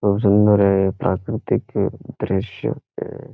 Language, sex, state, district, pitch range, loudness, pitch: Bengali, male, West Bengal, Jhargram, 95-110 Hz, -20 LUFS, 100 Hz